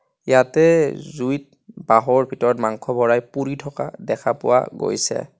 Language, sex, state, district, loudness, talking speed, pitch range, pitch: Assamese, male, Assam, Kamrup Metropolitan, -19 LUFS, 120 wpm, 120-145 Hz, 130 Hz